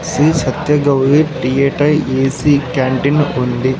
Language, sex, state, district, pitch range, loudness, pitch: Telugu, male, Andhra Pradesh, Sri Satya Sai, 130-150 Hz, -14 LUFS, 140 Hz